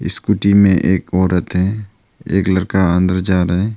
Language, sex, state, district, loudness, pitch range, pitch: Hindi, male, Arunachal Pradesh, Longding, -15 LUFS, 90-100 Hz, 95 Hz